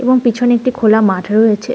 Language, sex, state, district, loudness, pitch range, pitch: Bengali, female, West Bengal, North 24 Parganas, -13 LUFS, 215-250 Hz, 235 Hz